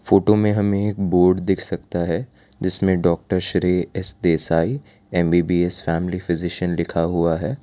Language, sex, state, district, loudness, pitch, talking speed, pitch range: Hindi, male, Gujarat, Valsad, -20 LUFS, 90 Hz, 150 wpm, 85-95 Hz